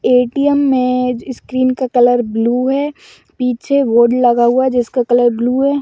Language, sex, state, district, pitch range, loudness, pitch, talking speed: Magahi, female, Bihar, Gaya, 245-270 Hz, -14 LUFS, 250 Hz, 165 wpm